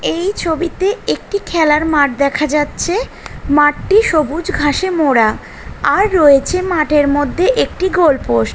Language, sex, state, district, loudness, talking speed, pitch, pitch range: Bengali, female, West Bengal, North 24 Parganas, -14 LUFS, 135 wpm, 310 Hz, 290-370 Hz